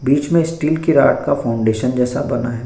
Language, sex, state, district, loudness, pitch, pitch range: Hindi, male, Bihar, Bhagalpur, -16 LUFS, 135 Hz, 120-155 Hz